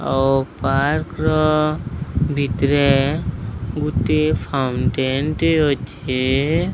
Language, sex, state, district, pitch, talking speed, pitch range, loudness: Odia, male, Odisha, Sambalpur, 140 Hz, 70 wpm, 130-155 Hz, -19 LUFS